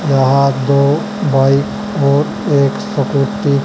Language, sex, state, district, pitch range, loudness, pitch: Hindi, male, Haryana, Charkhi Dadri, 130-140 Hz, -14 LUFS, 140 Hz